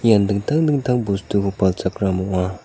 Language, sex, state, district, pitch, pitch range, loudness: Garo, male, Meghalaya, South Garo Hills, 100 Hz, 95-115 Hz, -20 LUFS